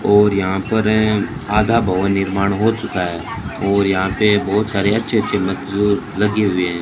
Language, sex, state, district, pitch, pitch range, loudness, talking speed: Hindi, male, Rajasthan, Bikaner, 100 Hz, 95-110 Hz, -17 LUFS, 185 wpm